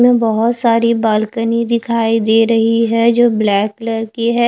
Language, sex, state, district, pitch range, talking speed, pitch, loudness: Hindi, female, Odisha, Khordha, 225-235 Hz, 175 wpm, 230 Hz, -14 LUFS